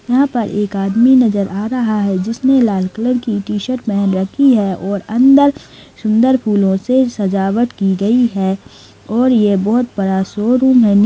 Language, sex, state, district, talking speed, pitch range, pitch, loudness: Hindi, female, Chhattisgarh, Kabirdham, 170 wpm, 195-250 Hz, 215 Hz, -14 LUFS